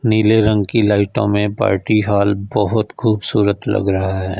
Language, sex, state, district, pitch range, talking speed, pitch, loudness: Hindi, male, Punjab, Fazilka, 100-110 Hz, 165 wpm, 105 Hz, -16 LUFS